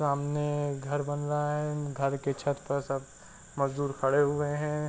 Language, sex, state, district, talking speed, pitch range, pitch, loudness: Hindi, male, Uttar Pradesh, Varanasi, 170 wpm, 140-145 Hz, 145 Hz, -31 LUFS